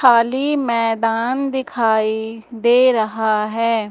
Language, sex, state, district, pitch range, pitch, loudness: Hindi, female, Madhya Pradesh, Umaria, 220-250 Hz, 230 Hz, -17 LUFS